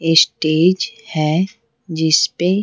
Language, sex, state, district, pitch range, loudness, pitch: Hindi, female, Bihar, Patna, 160-185 Hz, -16 LUFS, 165 Hz